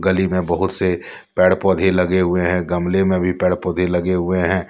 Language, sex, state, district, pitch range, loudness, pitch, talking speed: Hindi, male, Jharkhand, Deoghar, 90-95 Hz, -18 LUFS, 90 Hz, 215 wpm